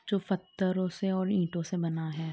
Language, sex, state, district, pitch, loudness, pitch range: Hindi, female, Andhra Pradesh, Guntur, 185 Hz, -31 LUFS, 170-190 Hz